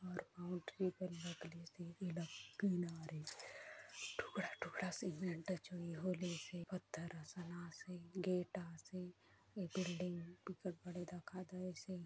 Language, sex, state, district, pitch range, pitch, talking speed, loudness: Chhattisgarhi, female, Chhattisgarh, Bastar, 170-185 Hz, 180 Hz, 135 wpm, -47 LUFS